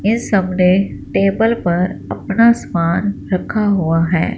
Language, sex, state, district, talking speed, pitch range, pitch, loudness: Hindi, female, Punjab, Fazilka, 135 wpm, 175-215 Hz, 195 Hz, -16 LUFS